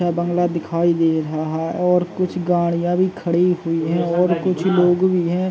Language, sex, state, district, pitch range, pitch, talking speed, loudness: Hindi, male, Chhattisgarh, Raigarh, 170-180 Hz, 175 Hz, 195 wpm, -19 LUFS